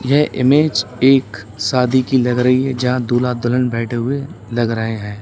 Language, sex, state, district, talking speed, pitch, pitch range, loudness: Hindi, male, Uttar Pradesh, Lalitpur, 185 wpm, 125 Hz, 115-130 Hz, -16 LUFS